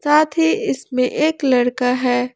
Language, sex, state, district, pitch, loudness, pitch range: Hindi, male, Jharkhand, Ranchi, 255 Hz, -18 LUFS, 250-305 Hz